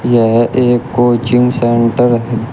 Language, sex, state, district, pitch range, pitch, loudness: Hindi, male, Uttar Pradesh, Shamli, 115-120 Hz, 120 Hz, -12 LUFS